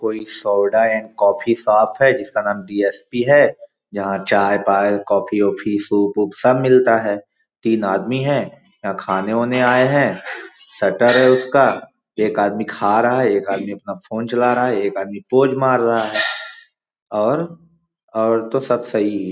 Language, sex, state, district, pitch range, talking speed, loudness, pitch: Hindi, male, Chhattisgarh, Balrampur, 100-125 Hz, 175 wpm, -17 LUFS, 110 Hz